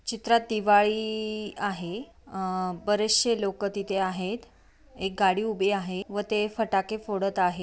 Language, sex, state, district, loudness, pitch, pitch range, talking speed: Marathi, female, Maharashtra, Aurangabad, -27 LUFS, 205 Hz, 190-215 Hz, 140 wpm